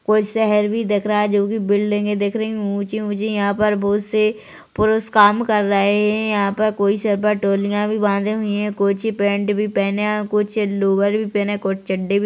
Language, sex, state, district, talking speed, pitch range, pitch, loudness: Hindi, female, Chhattisgarh, Rajnandgaon, 230 wpm, 200-215 Hz, 210 Hz, -19 LUFS